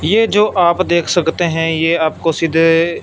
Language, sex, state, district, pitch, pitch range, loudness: Hindi, male, Punjab, Fazilka, 170 Hz, 165-175 Hz, -14 LUFS